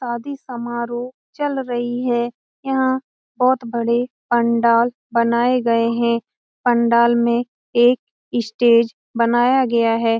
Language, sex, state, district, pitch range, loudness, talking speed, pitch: Hindi, female, Bihar, Lakhisarai, 235-250 Hz, -19 LUFS, 110 wpm, 240 Hz